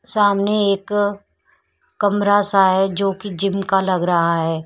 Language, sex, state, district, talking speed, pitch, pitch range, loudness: Hindi, female, Uttar Pradesh, Shamli, 155 wpm, 195 Hz, 190-205 Hz, -18 LUFS